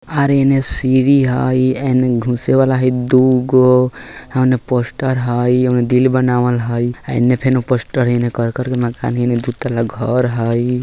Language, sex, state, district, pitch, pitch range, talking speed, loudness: Bajjika, male, Bihar, Vaishali, 125 Hz, 120-130 Hz, 165 wpm, -15 LUFS